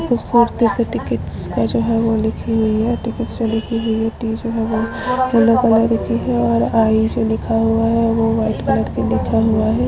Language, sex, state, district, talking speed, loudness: Hindi, female, Chhattisgarh, Bilaspur, 220 wpm, -17 LUFS